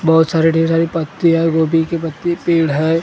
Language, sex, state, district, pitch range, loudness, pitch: Hindi, male, Maharashtra, Gondia, 160-165 Hz, -15 LUFS, 165 Hz